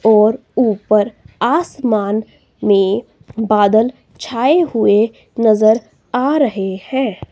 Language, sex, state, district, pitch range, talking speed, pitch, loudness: Hindi, female, Himachal Pradesh, Shimla, 210-250 Hz, 90 wpm, 220 Hz, -15 LUFS